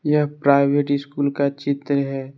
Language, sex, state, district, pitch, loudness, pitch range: Hindi, male, Jharkhand, Deoghar, 140 Hz, -20 LUFS, 140-145 Hz